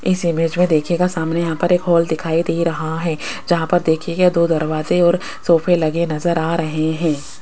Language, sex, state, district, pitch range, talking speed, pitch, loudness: Hindi, female, Rajasthan, Jaipur, 160-175 Hz, 210 wpm, 170 Hz, -18 LUFS